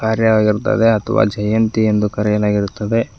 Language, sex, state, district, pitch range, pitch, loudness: Kannada, female, Karnataka, Koppal, 105-110 Hz, 110 Hz, -16 LUFS